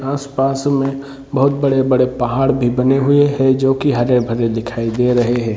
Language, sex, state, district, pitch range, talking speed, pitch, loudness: Hindi, male, Jharkhand, Sahebganj, 120-135 Hz, 185 wpm, 135 Hz, -16 LUFS